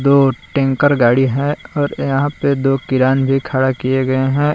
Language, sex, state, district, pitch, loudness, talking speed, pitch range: Hindi, male, Jharkhand, Palamu, 135 Hz, -15 LUFS, 185 wpm, 130-145 Hz